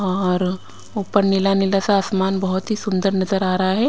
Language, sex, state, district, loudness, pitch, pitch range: Hindi, female, Himachal Pradesh, Shimla, -19 LUFS, 195 Hz, 190-195 Hz